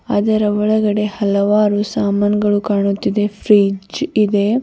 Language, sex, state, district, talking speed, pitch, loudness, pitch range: Kannada, female, Karnataka, Bidar, 90 wpm, 205 Hz, -16 LUFS, 205-210 Hz